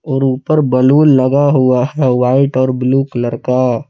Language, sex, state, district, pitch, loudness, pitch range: Hindi, male, Jharkhand, Palamu, 130 Hz, -12 LUFS, 125-140 Hz